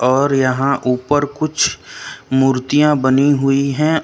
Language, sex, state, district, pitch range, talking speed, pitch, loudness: Hindi, male, Uttar Pradesh, Lucknow, 130-145 Hz, 120 wpm, 140 Hz, -15 LUFS